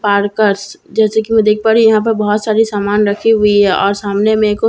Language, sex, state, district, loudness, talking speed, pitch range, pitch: Hindi, female, Bihar, Katihar, -12 LUFS, 215 wpm, 205-220 Hz, 210 Hz